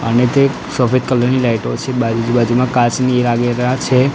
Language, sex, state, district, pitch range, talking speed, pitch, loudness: Gujarati, male, Gujarat, Gandhinagar, 120-130 Hz, 190 wpm, 125 Hz, -15 LUFS